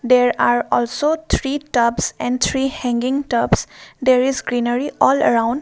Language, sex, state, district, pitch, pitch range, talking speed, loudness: English, female, Assam, Kamrup Metropolitan, 250 Hz, 240-270 Hz, 150 wpm, -18 LUFS